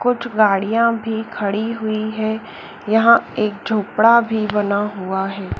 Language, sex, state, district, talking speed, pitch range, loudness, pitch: Hindi, female, Madhya Pradesh, Dhar, 140 wpm, 205-225 Hz, -18 LUFS, 215 Hz